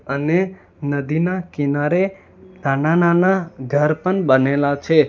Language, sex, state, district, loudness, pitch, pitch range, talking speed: Gujarati, male, Gujarat, Valsad, -18 LUFS, 150 Hz, 140-180 Hz, 105 wpm